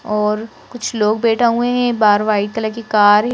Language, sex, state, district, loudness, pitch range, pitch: Hindi, female, Madhya Pradesh, Bhopal, -16 LUFS, 210-235 Hz, 220 Hz